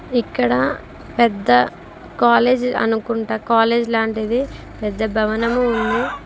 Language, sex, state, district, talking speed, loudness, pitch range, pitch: Telugu, female, Telangana, Mahabubabad, 85 wpm, -18 LUFS, 220-240 Hz, 230 Hz